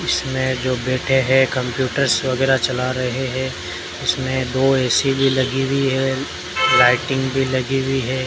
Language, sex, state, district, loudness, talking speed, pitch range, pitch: Hindi, male, Rajasthan, Bikaner, -18 LUFS, 150 wpm, 130-135 Hz, 130 Hz